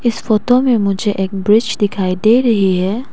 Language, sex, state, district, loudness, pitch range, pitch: Hindi, female, Arunachal Pradesh, Lower Dibang Valley, -14 LUFS, 195-235 Hz, 210 Hz